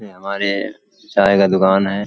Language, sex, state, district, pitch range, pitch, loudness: Hindi, male, Uttar Pradesh, Hamirpur, 95-100 Hz, 100 Hz, -16 LUFS